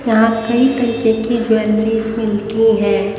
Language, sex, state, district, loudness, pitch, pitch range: Hindi, female, Haryana, Rohtak, -15 LUFS, 225 Hz, 215-230 Hz